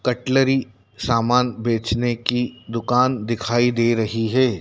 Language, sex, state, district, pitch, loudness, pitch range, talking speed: Hindi, male, Madhya Pradesh, Dhar, 120 Hz, -20 LUFS, 115-125 Hz, 115 wpm